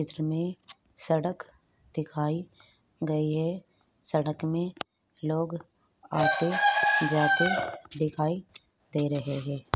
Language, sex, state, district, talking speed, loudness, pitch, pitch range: Hindi, female, Uttar Pradesh, Ghazipur, 90 wpm, -29 LUFS, 155 Hz, 155-170 Hz